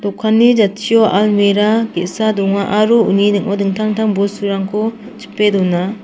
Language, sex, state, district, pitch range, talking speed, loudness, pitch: Garo, female, Meghalaya, South Garo Hills, 200-220 Hz, 120 wpm, -14 LUFS, 205 Hz